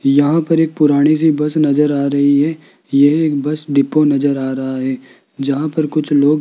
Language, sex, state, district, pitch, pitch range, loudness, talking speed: Hindi, male, Rajasthan, Jaipur, 145 Hz, 140-155 Hz, -15 LUFS, 215 wpm